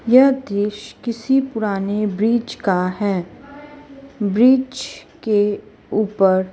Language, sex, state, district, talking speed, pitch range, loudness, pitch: Hindi, female, Chhattisgarh, Raipur, 90 wpm, 200-265 Hz, -19 LUFS, 220 Hz